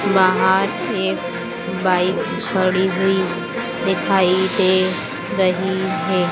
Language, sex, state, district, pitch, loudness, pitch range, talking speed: Hindi, female, Madhya Pradesh, Dhar, 185 Hz, -18 LUFS, 180-195 Hz, 85 wpm